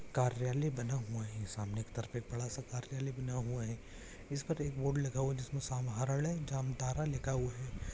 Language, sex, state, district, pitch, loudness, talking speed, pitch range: Hindi, male, Jharkhand, Jamtara, 130 Hz, -38 LUFS, 205 wpm, 120-135 Hz